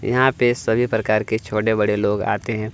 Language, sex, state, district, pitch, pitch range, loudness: Hindi, male, Chhattisgarh, Kabirdham, 110 Hz, 105-120 Hz, -20 LUFS